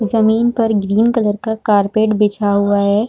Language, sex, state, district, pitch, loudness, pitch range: Hindi, female, Bihar, Supaul, 215 Hz, -15 LUFS, 205-225 Hz